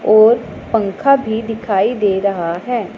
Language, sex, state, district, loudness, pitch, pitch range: Hindi, female, Punjab, Pathankot, -16 LUFS, 215 Hz, 200-230 Hz